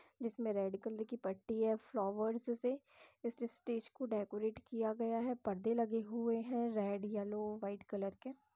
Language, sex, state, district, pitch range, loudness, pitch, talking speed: Hindi, female, Bihar, East Champaran, 210-235 Hz, -40 LUFS, 225 Hz, 170 wpm